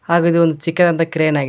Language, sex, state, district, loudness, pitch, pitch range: Kannada, male, Karnataka, Koppal, -15 LUFS, 165 Hz, 160-170 Hz